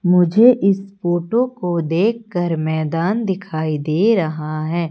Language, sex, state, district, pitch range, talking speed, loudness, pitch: Hindi, female, Madhya Pradesh, Umaria, 160-200 Hz, 120 wpm, -18 LUFS, 175 Hz